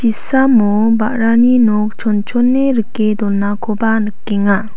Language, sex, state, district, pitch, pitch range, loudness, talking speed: Garo, female, Meghalaya, South Garo Hills, 220 Hz, 210-235 Hz, -14 LUFS, 90 wpm